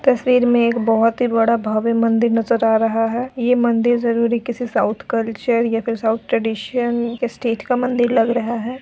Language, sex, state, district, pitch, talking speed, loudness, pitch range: Hindi, female, Uttar Pradesh, Etah, 235 Hz, 195 wpm, -18 LUFS, 230-245 Hz